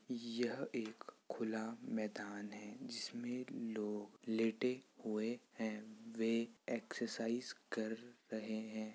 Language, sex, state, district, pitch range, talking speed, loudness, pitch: Hindi, male, Uttar Pradesh, Ghazipur, 110-115 Hz, 100 wpm, -43 LUFS, 110 Hz